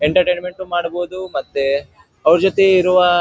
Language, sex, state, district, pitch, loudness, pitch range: Kannada, male, Karnataka, Dharwad, 180 Hz, -17 LUFS, 170-185 Hz